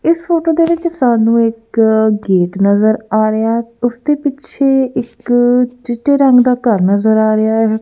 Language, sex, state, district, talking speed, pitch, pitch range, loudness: Punjabi, female, Punjab, Kapurthala, 170 wpm, 235 Hz, 220-265 Hz, -13 LUFS